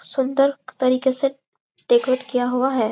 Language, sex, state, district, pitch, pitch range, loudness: Hindi, female, Chhattisgarh, Bastar, 260 Hz, 250-270 Hz, -20 LUFS